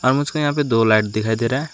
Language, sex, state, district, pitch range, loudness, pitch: Hindi, male, West Bengal, Alipurduar, 110-145 Hz, -18 LUFS, 130 Hz